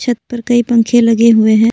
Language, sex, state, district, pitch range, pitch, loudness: Hindi, female, Assam, Kamrup Metropolitan, 225-240 Hz, 230 Hz, -11 LUFS